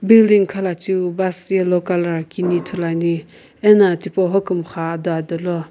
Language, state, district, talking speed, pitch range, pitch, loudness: Sumi, Nagaland, Kohima, 125 wpm, 170-195 Hz, 180 Hz, -18 LUFS